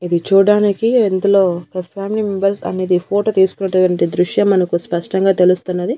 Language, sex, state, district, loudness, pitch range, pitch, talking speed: Telugu, female, Andhra Pradesh, Annamaya, -15 LUFS, 180-200 Hz, 190 Hz, 130 wpm